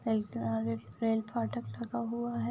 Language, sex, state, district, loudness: Hindi, female, Uttar Pradesh, Budaun, -35 LUFS